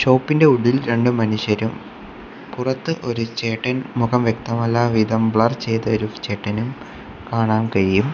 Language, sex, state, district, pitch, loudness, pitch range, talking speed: Malayalam, male, Kerala, Kollam, 115 Hz, -19 LUFS, 110-125 Hz, 110 wpm